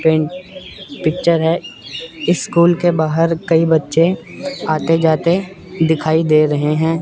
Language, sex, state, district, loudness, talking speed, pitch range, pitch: Hindi, male, Chandigarh, Chandigarh, -16 LUFS, 120 wpm, 155-175 Hz, 165 Hz